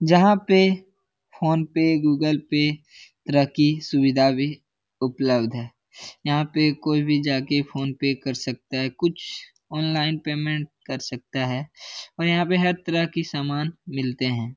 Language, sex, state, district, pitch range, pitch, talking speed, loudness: Hindi, male, Bihar, Lakhisarai, 135-160 Hz, 150 Hz, 155 wpm, -23 LUFS